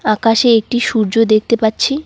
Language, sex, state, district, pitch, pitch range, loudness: Bengali, female, West Bengal, Cooch Behar, 225 Hz, 220-240 Hz, -13 LUFS